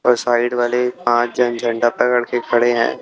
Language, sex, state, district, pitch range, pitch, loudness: Hindi, male, Chhattisgarh, Raipur, 120-125 Hz, 120 Hz, -17 LUFS